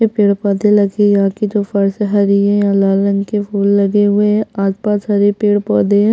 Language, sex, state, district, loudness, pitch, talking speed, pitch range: Hindi, female, Chhattisgarh, Jashpur, -14 LUFS, 205 Hz, 215 wpm, 200-210 Hz